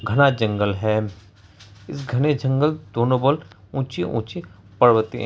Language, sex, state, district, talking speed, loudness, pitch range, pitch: Hindi, male, Bihar, Araria, 115 wpm, -21 LUFS, 105-135 Hz, 115 Hz